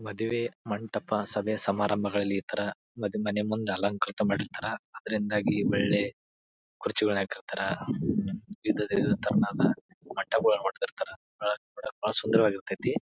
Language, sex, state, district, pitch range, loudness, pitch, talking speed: Kannada, male, Karnataka, Bijapur, 100-110 Hz, -29 LUFS, 105 Hz, 90 wpm